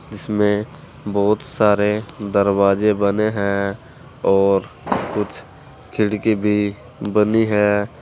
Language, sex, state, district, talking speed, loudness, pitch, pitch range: Hindi, male, Uttar Pradesh, Saharanpur, 90 wpm, -19 LUFS, 105 Hz, 100-105 Hz